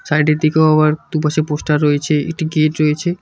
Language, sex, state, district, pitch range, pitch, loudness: Bengali, male, West Bengal, Cooch Behar, 150-155 Hz, 155 Hz, -15 LUFS